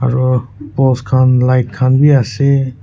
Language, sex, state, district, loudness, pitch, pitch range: Nagamese, male, Nagaland, Kohima, -12 LUFS, 130 Hz, 125-135 Hz